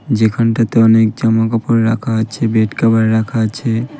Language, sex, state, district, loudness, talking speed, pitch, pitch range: Bengali, male, West Bengal, Cooch Behar, -14 LUFS, 165 wpm, 115 Hz, 110-115 Hz